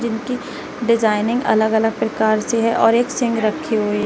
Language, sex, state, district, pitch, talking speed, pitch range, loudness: Hindi, female, Uttar Pradesh, Lalitpur, 225 Hz, 175 wpm, 220-235 Hz, -18 LUFS